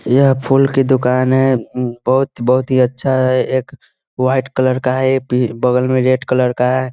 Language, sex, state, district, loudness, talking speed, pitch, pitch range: Hindi, male, Bihar, Muzaffarpur, -15 LUFS, 190 wpm, 130 Hz, 125-130 Hz